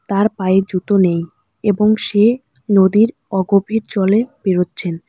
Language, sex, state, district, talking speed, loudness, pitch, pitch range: Bengali, female, West Bengal, Alipurduar, 120 wpm, -16 LUFS, 200 Hz, 185-215 Hz